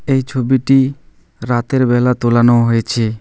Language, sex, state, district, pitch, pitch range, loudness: Bengali, male, West Bengal, Alipurduar, 120 Hz, 115-130 Hz, -14 LUFS